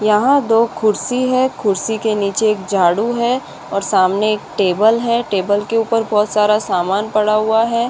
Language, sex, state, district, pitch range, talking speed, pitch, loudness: Hindi, female, Maharashtra, Aurangabad, 205-230 Hz, 175 wpm, 215 Hz, -16 LUFS